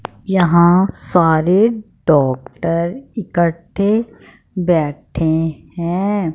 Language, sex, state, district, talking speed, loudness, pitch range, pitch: Hindi, female, Punjab, Fazilka, 55 wpm, -16 LUFS, 160-200 Hz, 170 Hz